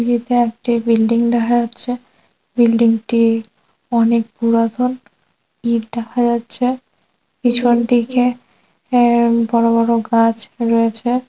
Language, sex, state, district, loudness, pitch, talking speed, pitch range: Bengali, female, West Bengal, Dakshin Dinajpur, -16 LUFS, 235 Hz, 90 wpm, 230-245 Hz